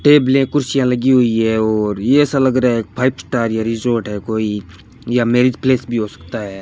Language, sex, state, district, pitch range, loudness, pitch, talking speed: Hindi, male, Rajasthan, Bikaner, 110-130 Hz, -16 LUFS, 120 Hz, 210 wpm